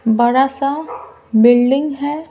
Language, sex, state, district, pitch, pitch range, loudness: Hindi, female, Bihar, Patna, 270 Hz, 240-290 Hz, -15 LUFS